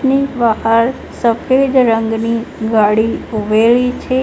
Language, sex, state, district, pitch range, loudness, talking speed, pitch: Gujarati, female, Gujarat, Gandhinagar, 225-255 Hz, -14 LUFS, 100 wpm, 230 Hz